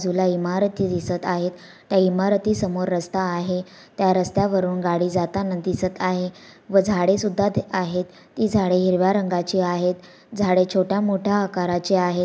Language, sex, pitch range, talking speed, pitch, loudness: Marathi, female, 180-195 Hz, 150 wpm, 185 Hz, -22 LUFS